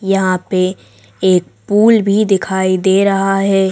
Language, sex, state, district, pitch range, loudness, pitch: Hindi, female, Madhya Pradesh, Bhopal, 185-195 Hz, -13 LUFS, 190 Hz